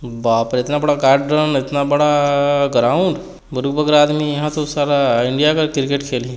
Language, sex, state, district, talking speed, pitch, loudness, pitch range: Hindi, male, Chhattisgarh, Jashpur, 150 wpm, 145 Hz, -16 LUFS, 135-150 Hz